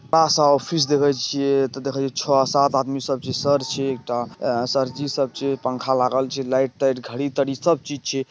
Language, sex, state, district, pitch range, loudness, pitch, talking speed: Angika, male, Bihar, Purnia, 130-140 Hz, -21 LUFS, 135 Hz, 150 wpm